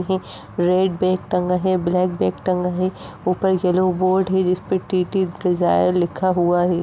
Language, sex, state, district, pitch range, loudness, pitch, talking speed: Hindi, female, Uttar Pradesh, Jyotiba Phule Nagar, 175-185 Hz, -20 LUFS, 180 Hz, 160 wpm